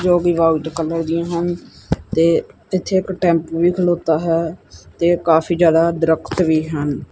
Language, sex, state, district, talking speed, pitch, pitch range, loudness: Punjabi, male, Punjab, Kapurthala, 160 wpm, 165 Hz, 165-175 Hz, -18 LUFS